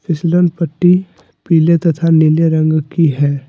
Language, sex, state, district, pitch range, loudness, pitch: Hindi, male, Jharkhand, Deoghar, 155-170 Hz, -13 LUFS, 165 Hz